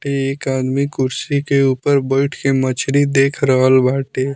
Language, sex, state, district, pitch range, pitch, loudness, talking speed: Bhojpuri, male, Bihar, Muzaffarpur, 130-140 Hz, 135 Hz, -16 LUFS, 150 wpm